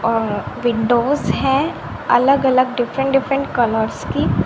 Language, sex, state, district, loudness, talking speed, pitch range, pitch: Hindi, female, Haryana, Rohtak, -17 LUFS, 120 wpm, 230-270 Hz, 250 Hz